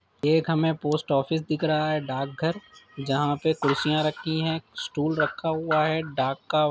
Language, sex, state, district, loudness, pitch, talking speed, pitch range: Hindi, male, Uttar Pradesh, Jyotiba Phule Nagar, -26 LUFS, 155 Hz, 170 wpm, 145-160 Hz